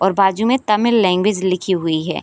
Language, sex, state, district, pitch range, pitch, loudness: Hindi, female, Bihar, Sitamarhi, 185-210 Hz, 190 Hz, -16 LUFS